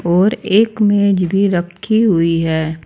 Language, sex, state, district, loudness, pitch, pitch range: Hindi, female, Uttar Pradesh, Saharanpur, -14 LUFS, 195 Hz, 170-210 Hz